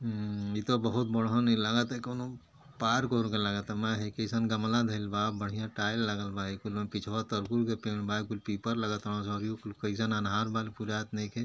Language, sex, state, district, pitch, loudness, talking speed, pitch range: Bhojpuri, male, Uttar Pradesh, Ghazipur, 110 Hz, -32 LUFS, 185 wpm, 105-115 Hz